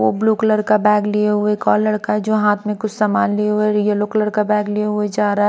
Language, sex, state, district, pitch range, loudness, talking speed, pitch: Hindi, female, Maharashtra, Mumbai Suburban, 210-215 Hz, -17 LUFS, 285 wpm, 210 Hz